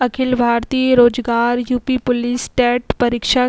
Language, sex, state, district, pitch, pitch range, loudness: Hindi, female, Uttar Pradesh, Muzaffarnagar, 245 Hz, 240-255 Hz, -16 LUFS